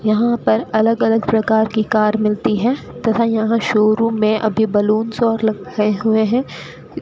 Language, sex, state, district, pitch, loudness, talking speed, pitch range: Hindi, female, Rajasthan, Bikaner, 220 Hz, -16 LUFS, 160 wpm, 215-225 Hz